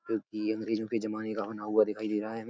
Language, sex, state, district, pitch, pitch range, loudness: Hindi, male, Uttar Pradesh, Etah, 110 Hz, 105-110 Hz, -32 LUFS